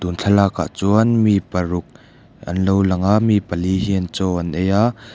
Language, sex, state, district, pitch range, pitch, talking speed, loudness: Mizo, male, Mizoram, Aizawl, 90-100 Hz, 95 Hz, 175 wpm, -18 LUFS